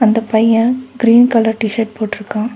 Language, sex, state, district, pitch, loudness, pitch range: Tamil, female, Tamil Nadu, Nilgiris, 225 Hz, -14 LUFS, 220-230 Hz